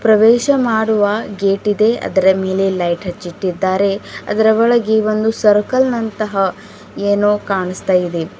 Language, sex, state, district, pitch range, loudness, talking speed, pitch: Kannada, female, Karnataka, Bidar, 190-220 Hz, -15 LUFS, 115 wpm, 205 Hz